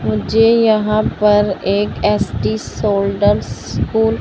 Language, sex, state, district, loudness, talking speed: Hindi, male, Chandigarh, Chandigarh, -15 LUFS, 115 wpm